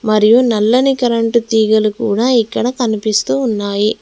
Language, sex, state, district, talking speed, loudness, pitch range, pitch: Telugu, female, Telangana, Mahabubabad, 120 wpm, -14 LUFS, 215-235 Hz, 220 Hz